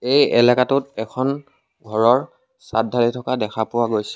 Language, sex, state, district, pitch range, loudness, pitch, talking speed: Assamese, male, Assam, Sonitpur, 110-135 Hz, -19 LUFS, 120 Hz, 145 wpm